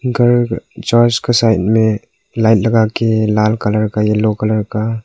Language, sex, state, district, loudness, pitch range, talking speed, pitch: Hindi, male, Nagaland, Kohima, -14 LUFS, 110-115 Hz, 165 wpm, 110 Hz